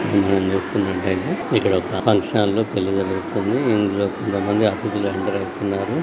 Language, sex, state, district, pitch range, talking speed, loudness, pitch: Telugu, male, Telangana, Karimnagar, 95-105 Hz, 160 wpm, -21 LUFS, 100 Hz